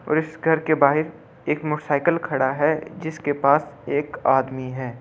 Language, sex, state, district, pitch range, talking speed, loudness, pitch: Hindi, male, Delhi, New Delhi, 135-155 Hz, 170 wpm, -22 LUFS, 150 Hz